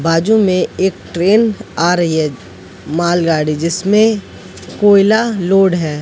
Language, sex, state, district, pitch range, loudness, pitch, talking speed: Hindi, male, Madhya Pradesh, Katni, 165-205 Hz, -13 LUFS, 175 Hz, 120 wpm